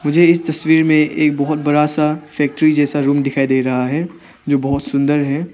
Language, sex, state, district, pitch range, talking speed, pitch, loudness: Hindi, male, Arunachal Pradesh, Papum Pare, 140-155 Hz, 205 wpm, 150 Hz, -15 LUFS